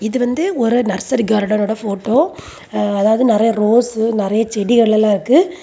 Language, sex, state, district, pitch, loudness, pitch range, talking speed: Tamil, female, Tamil Nadu, Kanyakumari, 225 Hz, -15 LUFS, 210-245 Hz, 140 wpm